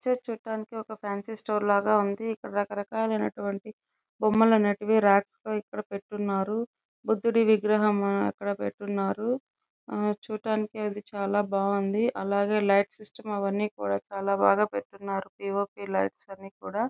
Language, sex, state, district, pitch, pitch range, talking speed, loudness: Telugu, female, Andhra Pradesh, Chittoor, 205 Hz, 200-220 Hz, 85 wpm, -28 LUFS